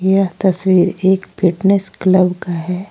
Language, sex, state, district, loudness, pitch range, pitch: Hindi, female, Jharkhand, Deoghar, -15 LUFS, 180-190 Hz, 185 Hz